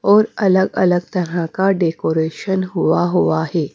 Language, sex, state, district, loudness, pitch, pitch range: Hindi, female, Punjab, Fazilka, -17 LUFS, 180 Hz, 165-190 Hz